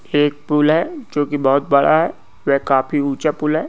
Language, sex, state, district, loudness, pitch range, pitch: Hindi, male, Goa, North and South Goa, -17 LUFS, 140-150 Hz, 145 Hz